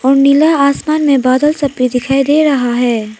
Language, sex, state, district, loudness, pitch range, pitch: Hindi, female, Arunachal Pradesh, Papum Pare, -11 LUFS, 255-295 Hz, 275 Hz